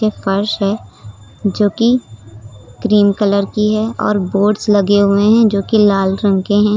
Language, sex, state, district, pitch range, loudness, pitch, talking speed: Hindi, female, Uttar Pradesh, Lucknow, 195-210 Hz, -14 LUFS, 200 Hz, 170 wpm